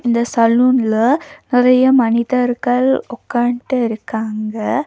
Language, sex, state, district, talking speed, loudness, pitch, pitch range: Tamil, female, Tamil Nadu, Nilgiris, 75 wpm, -15 LUFS, 245 Hz, 230-255 Hz